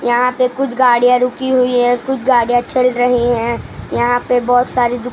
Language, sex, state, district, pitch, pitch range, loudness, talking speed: Hindi, male, Maharashtra, Mumbai Suburban, 245 Hz, 245-255 Hz, -14 LUFS, 200 wpm